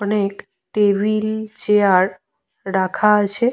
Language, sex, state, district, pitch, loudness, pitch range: Bengali, female, Jharkhand, Jamtara, 210 Hz, -18 LUFS, 200-215 Hz